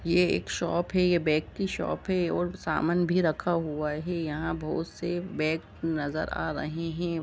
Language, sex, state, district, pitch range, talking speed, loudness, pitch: Hindi, male, Jharkhand, Jamtara, 155-175 Hz, 190 wpm, -29 LUFS, 165 Hz